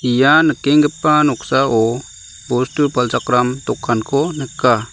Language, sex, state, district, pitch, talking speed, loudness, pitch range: Garo, male, Meghalaya, South Garo Hills, 130 Hz, 85 wpm, -15 LUFS, 120-145 Hz